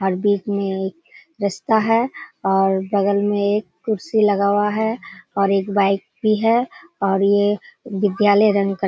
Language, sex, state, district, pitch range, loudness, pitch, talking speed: Hindi, female, Bihar, Kishanganj, 195-220 Hz, -19 LUFS, 205 Hz, 170 wpm